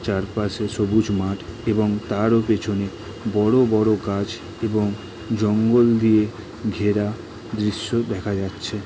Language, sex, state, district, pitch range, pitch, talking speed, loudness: Bengali, male, West Bengal, Jalpaiguri, 105-115 Hz, 110 Hz, 110 wpm, -22 LUFS